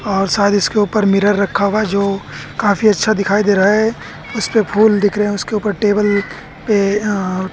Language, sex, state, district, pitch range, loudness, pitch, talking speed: Hindi, male, Haryana, Jhajjar, 200-210 Hz, -15 LUFS, 205 Hz, 200 wpm